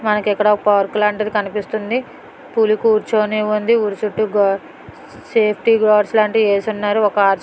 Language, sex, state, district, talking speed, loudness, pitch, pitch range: Telugu, female, Telangana, Nalgonda, 145 wpm, -16 LUFS, 210 Hz, 210-215 Hz